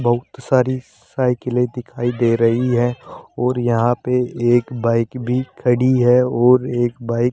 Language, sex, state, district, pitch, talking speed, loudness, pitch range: Hindi, male, Rajasthan, Jaipur, 120 Hz, 155 wpm, -18 LUFS, 120-125 Hz